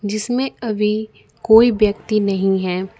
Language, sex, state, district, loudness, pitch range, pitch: Hindi, female, Jharkhand, Ranchi, -17 LUFS, 195-220 Hz, 210 Hz